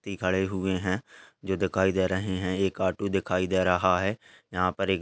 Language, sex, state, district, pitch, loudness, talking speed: Hindi, male, Uttar Pradesh, Ghazipur, 95 Hz, -27 LUFS, 225 wpm